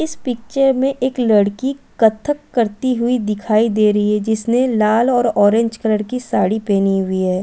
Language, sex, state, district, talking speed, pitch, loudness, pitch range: Hindi, female, Chhattisgarh, Balrampur, 180 wpm, 225 Hz, -17 LUFS, 210-250 Hz